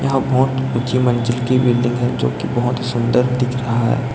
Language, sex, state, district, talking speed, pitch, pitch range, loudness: Hindi, male, Chhattisgarh, Raipur, 215 wpm, 125 Hz, 120-125 Hz, -17 LUFS